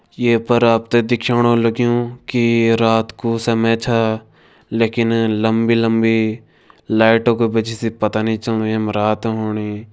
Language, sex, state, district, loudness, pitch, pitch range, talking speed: Kumaoni, male, Uttarakhand, Tehri Garhwal, -17 LUFS, 115 Hz, 110-115 Hz, 145 wpm